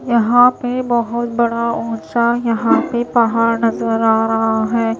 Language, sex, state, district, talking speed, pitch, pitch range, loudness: Hindi, female, Himachal Pradesh, Shimla, 145 wpm, 235 Hz, 225-240 Hz, -16 LUFS